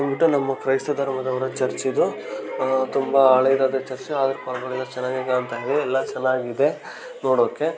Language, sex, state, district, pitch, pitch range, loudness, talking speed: Kannada, male, Karnataka, Gulbarga, 130 Hz, 130-135 Hz, -22 LUFS, 115 wpm